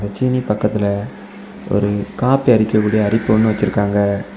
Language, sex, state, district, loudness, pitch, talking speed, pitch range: Tamil, male, Tamil Nadu, Kanyakumari, -17 LUFS, 105 Hz, 110 wpm, 100-110 Hz